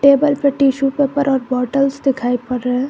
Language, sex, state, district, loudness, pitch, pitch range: Hindi, female, Jharkhand, Garhwa, -16 LUFS, 275 Hz, 255-280 Hz